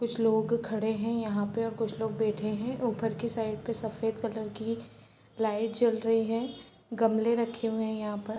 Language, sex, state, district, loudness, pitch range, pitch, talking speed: Hindi, female, Bihar, Sitamarhi, -31 LUFS, 220-230 Hz, 225 Hz, 205 wpm